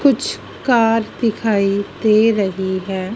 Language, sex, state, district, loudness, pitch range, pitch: Hindi, female, Madhya Pradesh, Dhar, -17 LUFS, 195-225 Hz, 215 Hz